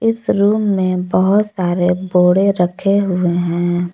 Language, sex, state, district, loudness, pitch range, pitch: Hindi, female, Jharkhand, Palamu, -15 LUFS, 175-200 Hz, 185 Hz